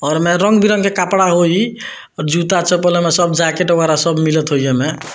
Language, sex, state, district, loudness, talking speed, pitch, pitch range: Bhojpuri, male, Bihar, Muzaffarpur, -14 LUFS, 185 wpm, 175 Hz, 160-185 Hz